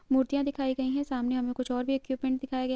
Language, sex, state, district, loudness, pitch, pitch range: Hindi, female, Uttarakhand, Uttarkashi, -30 LUFS, 260 Hz, 255-270 Hz